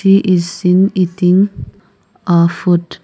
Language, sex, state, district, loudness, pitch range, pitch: English, female, Nagaland, Kohima, -13 LUFS, 175-190 Hz, 180 Hz